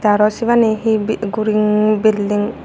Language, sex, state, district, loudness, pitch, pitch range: Chakma, female, Tripura, Unakoti, -15 LUFS, 215 Hz, 210-220 Hz